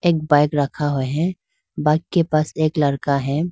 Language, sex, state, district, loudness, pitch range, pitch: Hindi, female, Arunachal Pradesh, Lower Dibang Valley, -20 LUFS, 145-160 Hz, 150 Hz